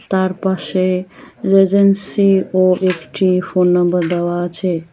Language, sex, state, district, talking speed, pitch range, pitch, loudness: Bengali, female, West Bengal, Cooch Behar, 120 wpm, 180-190 Hz, 185 Hz, -15 LUFS